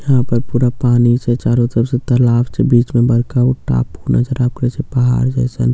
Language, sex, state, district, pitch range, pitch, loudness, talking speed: Maithili, male, Bihar, Katihar, 120-125 Hz, 125 Hz, -15 LUFS, 230 wpm